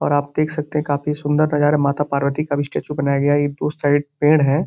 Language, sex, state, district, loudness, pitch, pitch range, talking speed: Hindi, male, Uttar Pradesh, Gorakhpur, -19 LUFS, 145 Hz, 145-150 Hz, 270 wpm